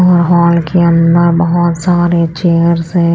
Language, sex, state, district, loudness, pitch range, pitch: Hindi, female, Chhattisgarh, Raipur, -10 LUFS, 170-175 Hz, 170 Hz